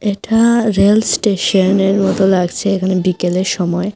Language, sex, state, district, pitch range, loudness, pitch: Bengali, female, Tripura, Unakoti, 185-205 Hz, -14 LUFS, 195 Hz